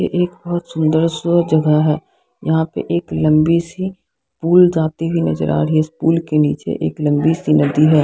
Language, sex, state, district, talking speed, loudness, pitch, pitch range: Hindi, female, Odisha, Sambalpur, 210 wpm, -16 LUFS, 155 Hz, 150-170 Hz